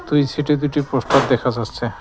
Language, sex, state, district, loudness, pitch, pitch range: Bengali, male, West Bengal, Cooch Behar, -19 LUFS, 135 Hz, 125-145 Hz